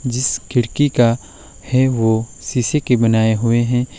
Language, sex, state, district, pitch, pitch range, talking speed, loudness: Hindi, male, West Bengal, Alipurduar, 120 Hz, 110-130 Hz, 150 wpm, -17 LUFS